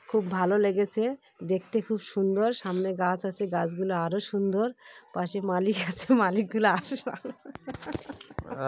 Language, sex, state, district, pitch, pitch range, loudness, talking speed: Bengali, female, West Bengal, North 24 Parganas, 200 Hz, 185-220 Hz, -28 LUFS, 140 wpm